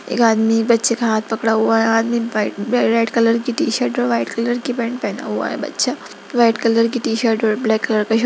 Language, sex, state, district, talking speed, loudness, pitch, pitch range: Hindi, female, Bihar, Gaya, 230 wpm, -18 LUFS, 230 Hz, 225-235 Hz